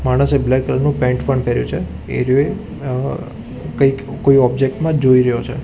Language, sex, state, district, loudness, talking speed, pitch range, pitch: Gujarati, male, Gujarat, Gandhinagar, -16 LUFS, 210 wpm, 125-135 Hz, 130 Hz